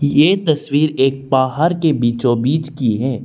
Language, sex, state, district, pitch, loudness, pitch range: Hindi, male, Arunachal Pradesh, Lower Dibang Valley, 140 Hz, -16 LUFS, 130-155 Hz